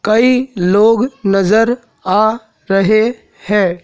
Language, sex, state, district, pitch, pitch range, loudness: Hindi, male, Madhya Pradesh, Dhar, 220 Hz, 195-235 Hz, -13 LUFS